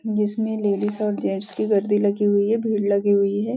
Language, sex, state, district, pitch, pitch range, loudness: Hindi, female, Maharashtra, Nagpur, 210 Hz, 200-215 Hz, -21 LUFS